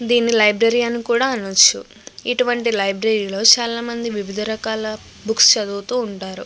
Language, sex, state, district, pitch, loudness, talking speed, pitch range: Telugu, female, Andhra Pradesh, Krishna, 220 Hz, -17 LUFS, 150 wpm, 210-235 Hz